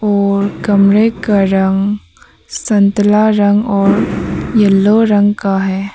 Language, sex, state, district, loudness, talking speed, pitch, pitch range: Hindi, female, Arunachal Pradesh, Papum Pare, -12 LUFS, 110 wpm, 205 Hz, 195-210 Hz